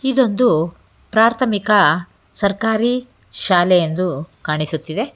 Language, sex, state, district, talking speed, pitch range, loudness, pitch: Kannada, female, Karnataka, Bangalore, 70 wpm, 170-230 Hz, -17 LUFS, 200 Hz